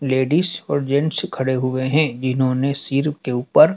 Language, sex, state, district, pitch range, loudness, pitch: Hindi, male, Madhya Pradesh, Dhar, 130-150 Hz, -19 LUFS, 135 Hz